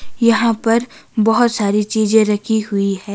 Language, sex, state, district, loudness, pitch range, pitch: Hindi, female, Himachal Pradesh, Shimla, -16 LUFS, 210-230 Hz, 220 Hz